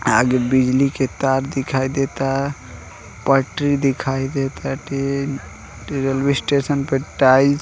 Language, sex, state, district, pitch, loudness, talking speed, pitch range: Bhojpuri, male, Uttar Pradesh, Deoria, 135 Hz, -19 LUFS, 120 wpm, 130-140 Hz